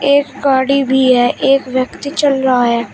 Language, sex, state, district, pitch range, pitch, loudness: Hindi, female, Uttar Pradesh, Shamli, 255-275 Hz, 265 Hz, -13 LUFS